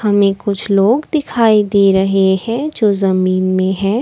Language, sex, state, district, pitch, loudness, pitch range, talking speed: Hindi, female, Assam, Kamrup Metropolitan, 200 Hz, -14 LUFS, 190-225 Hz, 165 wpm